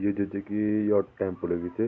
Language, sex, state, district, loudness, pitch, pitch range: Garhwali, male, Uttarakhand, Tehri Garhwal, -28 LUFS, 100 Hz, 95-105 Hz